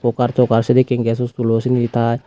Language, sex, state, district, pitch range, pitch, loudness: Chakma, female, Tripura, West Tripura, 115-125 Hz, 120 Hz, -17 LUFS